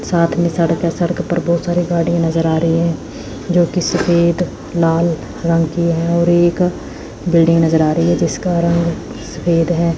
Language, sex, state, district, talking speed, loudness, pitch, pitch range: Hindi, female, Chandigarh, Chandigarh, 185 wpm, -15 LUFS, 170 Hz, 165-175 Hz